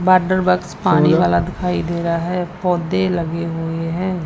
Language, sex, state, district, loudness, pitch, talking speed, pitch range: Hindi, female, Punjab, Fazilka, -18 LUFS, 175 Hz, 170 wpm, 170-180 Hz